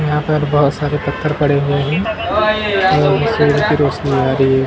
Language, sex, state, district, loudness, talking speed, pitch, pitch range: Hindi, male, Maharashtra, Mumbai Suburban, -15 LUFS, 220 wpm, 145 Hz, 140-150 Hz